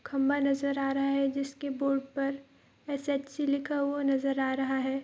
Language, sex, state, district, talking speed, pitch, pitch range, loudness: Hindi, female, Bihar, Saharsa, 180 wpm, 275 Hz, 275-280 Hz, -30 LUFS